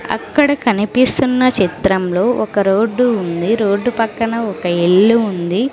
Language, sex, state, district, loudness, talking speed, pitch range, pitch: Telugu, female, Andhra Pradesh, Sri Satya Sai, -15 LUFS, 115 wpm, 190-245 Hz, 220 Hz